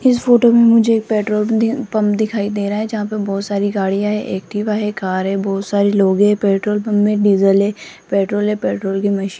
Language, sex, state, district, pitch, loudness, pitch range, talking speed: Hindi, female, Rajasthan, Jaipur, 205 Hz, -16 LUFS, 200-215 Hz, 230 wpm